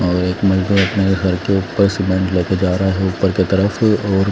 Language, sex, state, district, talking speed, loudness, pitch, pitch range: Hindi, male, Punjab, Fazilka, 235 wpm, -16 LUFS, 95 Hz, 95-100 Hz